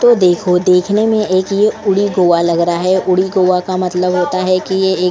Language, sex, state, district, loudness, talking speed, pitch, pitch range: Hindi, female, Goa, North and South Goa, -13 LUFS, 245 wpm, 185 Hz, 180-195 Hz